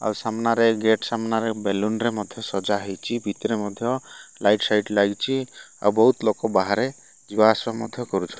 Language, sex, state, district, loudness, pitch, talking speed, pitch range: Odia, male, Odisha, Malkangiri, -23 LUFS, 110 Hz, 165 wpm, 100-115 Hz